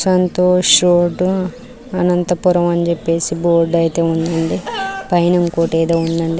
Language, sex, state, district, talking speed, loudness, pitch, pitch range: Telugu, female, Andhra Pradesh, Anantapur, 110 wpm, -15 LUFS, 175 Hz, 165-180 Hz